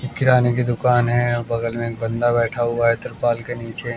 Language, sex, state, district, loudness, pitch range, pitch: Hindi, male, Bihar, West Champaran, -20 LUFS, 115-120 Hz, 120 Hz